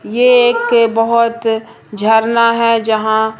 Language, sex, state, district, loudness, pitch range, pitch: Hindi, female, Madhya Pradesh, Umaria, -12 LUFS, 220-235 Hz, 230 Hz